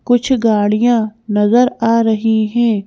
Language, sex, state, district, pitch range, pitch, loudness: Hindi, female, Madhya Pradesh, Bhopal, 215-240 Hz, 225 Hz, -14 LUFS